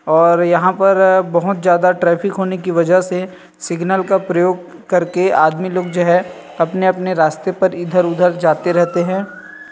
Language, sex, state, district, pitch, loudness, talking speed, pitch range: Hindi, male, Chhattisgarh, Rajnandgaon, 180 Hz, -15 LUFS, 155 wpm, 175-185 Hz